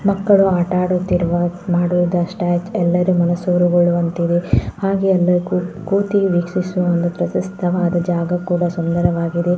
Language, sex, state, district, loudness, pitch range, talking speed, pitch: Kannada, female, Karnataka, Dharwad, -17 LUFS, 175-180 Hz, 90 wpm, 175 Hz